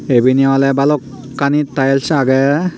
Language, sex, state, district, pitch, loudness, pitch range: Chakma, male, Tripura, Unakoti, 135 Hz, -14 LUFS, 135-145 Hz